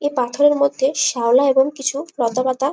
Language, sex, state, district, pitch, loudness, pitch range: Bengali, female, West Bengal, Malda, 275 Hz, -17 LUFS, 255-285 Hz